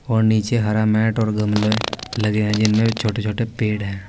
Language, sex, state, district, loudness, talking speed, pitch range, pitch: Hindi, male, Uttar Pradesh, Saharanpur, -19 LUFS, 190 wpm, 105-110 Hz, 110 Hz